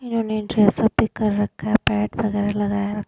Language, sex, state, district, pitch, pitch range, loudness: Hindi, female, Goa, North and South Goa, 210 Hz, 205-220 Hz, -21 LUFS